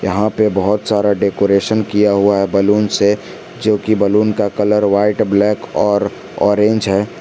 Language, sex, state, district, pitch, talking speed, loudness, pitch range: Hindi, male, Jharkhand, Garhwa, 105 Hz, 165 wpm, -14 LUFS, 100-105 Hz